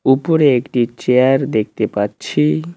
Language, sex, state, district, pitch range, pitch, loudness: Bengali, male, West Bengal, Cooch Behar, 105-130 Hz, 120 Hz, -16 LUFS